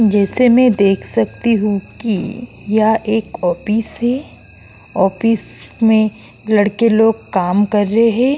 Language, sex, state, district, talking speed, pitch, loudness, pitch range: Hindi, female, Uttar Pradesh, Jyotiba Phule Nagar, 130 wpm, 220 Hz, -15 LUFS, 205-230 Hz